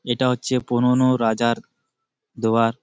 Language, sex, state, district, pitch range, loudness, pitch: Bengali, male, West Bengal, Malda, 115-125 Hz, -20 LUFS, 120 Hz